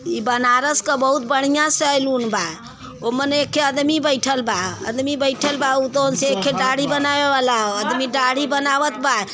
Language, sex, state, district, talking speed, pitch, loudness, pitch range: Bhojpuri, female, Uttar Pradesh, Varanasi, 160 wpm, 275 Hz, -18 LUFS, 250-285 Hz